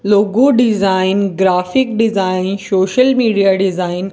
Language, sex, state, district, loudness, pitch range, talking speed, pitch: Hindi, female, Rajasthan, Bikaner, -14 LUFS, 190-225 Hz, 115 wpm, 195 Hz